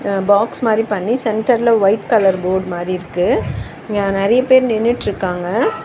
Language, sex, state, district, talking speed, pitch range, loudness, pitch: Tamil, female, Tamil Nadu, Chennai, 145 wpm, 190-230 Hz, -16 LUFS, 205 Hz